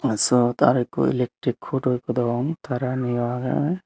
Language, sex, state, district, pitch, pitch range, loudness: Chakma, male, Tripura, Unakoti, 125 Hz, 120-130 Hz, -23 LUFS